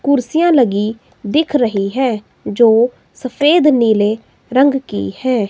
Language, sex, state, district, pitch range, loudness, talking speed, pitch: Hindi, female, Himachal Pradesh, Shimla, 215-280 Hz, -14 LUFS, 120 wpm, 245 Hz